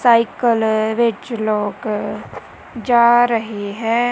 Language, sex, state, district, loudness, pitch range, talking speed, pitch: Punjabi, female, Punjab, Kapurthala, -17 LUFS, 215-235 Hz, 85 wpm, 230 Hz